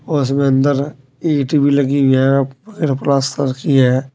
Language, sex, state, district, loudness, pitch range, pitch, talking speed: Hindi, male, Uttar Pradesh, Saharanpur, -15 LUFS, 135-145 Hz, 140 Hz, 160 wpm